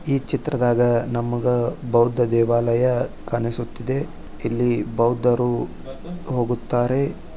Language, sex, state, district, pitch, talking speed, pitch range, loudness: Kannada, male, Karnataka, Bijapur, 120 Hz, 75 wpm, 120-130 Hz, -22 LUFS